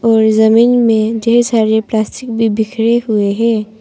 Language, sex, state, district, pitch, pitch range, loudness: Hindi, female, Arunachal Pradesh, Papum Pare, 225 Hz, 220-230 Hz, -12 LUFS